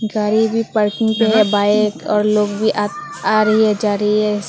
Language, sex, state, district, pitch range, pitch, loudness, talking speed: Hindi, female, Tripura, West Tripura, 205-220 Hz, 210 Hz, -16 LUFS, 215 wpm